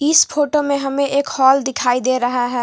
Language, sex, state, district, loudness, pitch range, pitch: Hindi, female, Jharkhand, Garhwa, -16 LUFS, 250-285 Hz, 270 Hz